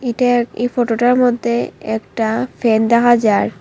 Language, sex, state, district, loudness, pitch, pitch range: Bengali, female, Assam, Hailakandi, -16 LUFS, 235 Hz, 225-245 Hz